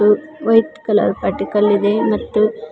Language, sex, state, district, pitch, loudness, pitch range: Kannada, female, Karnataka, Koppal, 215 Hz, -16 LUFS, 210-225 Hz